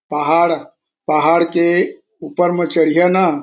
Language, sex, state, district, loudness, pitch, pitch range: Chhattisgarhi, male, Chhattisgarh, Korba, -15 LUFS, 170 Hz, 160-180 Hz